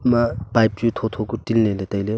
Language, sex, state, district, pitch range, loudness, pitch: Wancho, male, Arunachal Pradesh, Longding, 105-115 Hz, -21 LUFS, 110 Hz